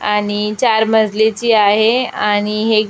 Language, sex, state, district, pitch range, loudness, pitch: Marathi, female, Maharashtra, Aurangabad, 210-220 Hz, -14 LUFS, 215 Hz